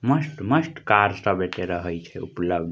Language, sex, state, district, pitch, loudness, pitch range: Maithili, male, Bihar, Madhepura, 100 Hz, -23 LUFS, 90-140 Hz